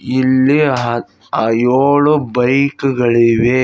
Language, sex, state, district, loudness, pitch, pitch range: Kannada, male, Karnataka, Koppal, -13 LUFS, 130 Hz, 120-140 Hz